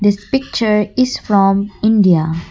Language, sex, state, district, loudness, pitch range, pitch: English, female, Assam, Kamrup Metropolitan, -14 LUFS, 195-220 Hz, 205 Hz